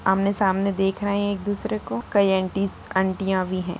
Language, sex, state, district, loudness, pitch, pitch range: Hindi, female, Bihar, Sitamarhi, -23 LUFS, 195 Hz, 190-200 Hz